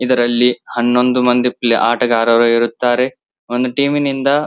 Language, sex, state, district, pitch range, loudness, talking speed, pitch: Kannada, male, Karnataka, Belgaum, 120-130 Hz, -14 LUFS, 135 wpm, 125 Hz